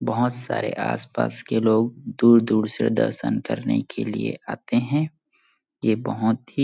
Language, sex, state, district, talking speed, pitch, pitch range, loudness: Hindi, male, Chhattisgarh, Bilaspur, 145 wpm, 115 Hz, 110-125 Hz, -23 LUFS